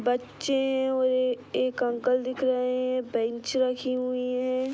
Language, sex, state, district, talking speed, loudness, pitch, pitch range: Hindi, female, Uttar Pradesh, Hamirpur, 140 wpm, -27 LUFS, 255 Hz, 250-255 Hz